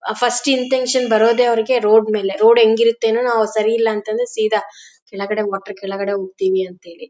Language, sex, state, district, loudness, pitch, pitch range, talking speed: Kannada, female, Karnataka, Bellary, -16 LUFS, 220 Hz, 200-235 Hz, 170 wpm